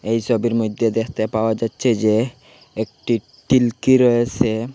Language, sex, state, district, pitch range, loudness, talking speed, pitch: Bengali, male, Assam, Hailakandi, 110-125 Hz, -19 LUFS, 125 wpm, 115 Hz